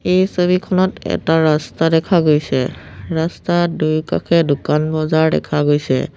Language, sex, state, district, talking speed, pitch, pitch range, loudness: Assamese, female, Assam, Sonitpur, 115 wpm, 160 Hz, 150-175 Hz, -16 LUFS